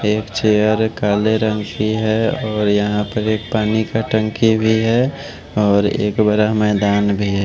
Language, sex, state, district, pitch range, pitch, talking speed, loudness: Hindi, male, Bihar, West Champaran, 105-110 Hz, 110 Hz, 175 wpm, -17 LUFS